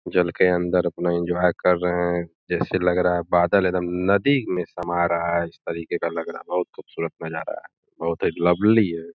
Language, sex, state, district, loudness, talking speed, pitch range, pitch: Hindi, male, Uttar Pradesh, Gorakhpur, -23 LUFS, 210 wpm, 85-90 Hz, 90 Hz